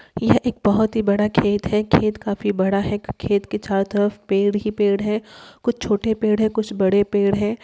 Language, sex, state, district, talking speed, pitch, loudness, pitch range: Hindi, female, Bihar, Darbhanga, 210 wpm, 205 Hz, -20 LUFS, 200-215 Hz